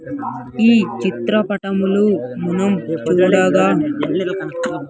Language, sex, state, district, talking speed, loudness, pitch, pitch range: Telugu, male, Andhra Pradesh, Sri Satya Sai, 60 wpm, -17 LUFS, 190 Hz, 175-205 Hz